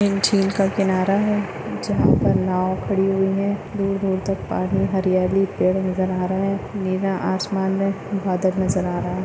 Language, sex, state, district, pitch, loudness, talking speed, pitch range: Hindi, female, Maharashtra, Solapur, 190 Hz, -21 LUFS, 180 wpm, 185-195 Hz